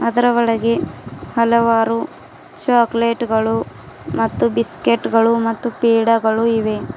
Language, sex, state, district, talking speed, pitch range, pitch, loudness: Kannada, female, Karnataka, Bidar, 95 wpm, 220-230 Hz, 230 Hz, -17 LUFS